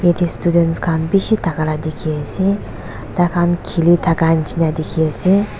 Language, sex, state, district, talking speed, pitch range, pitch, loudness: Nagamese, female, Nagaland, Dimapur, 150 wpm, 155-175 Hz, 165 Hz, -16 LUFS